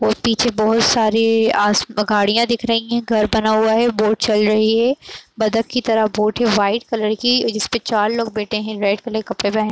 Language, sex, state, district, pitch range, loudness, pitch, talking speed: Kumaoni, female, Uttarakhand, Uttarkashi, 215-230 Hz, -17 LUFS, 220 Hz, 215 wpm